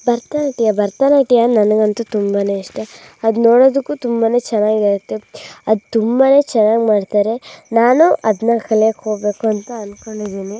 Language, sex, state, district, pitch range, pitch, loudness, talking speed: Kannada, female, Karnataka, Raichur, 210-240 Hz, 220 Hz, -15 LUFS, 115 wpm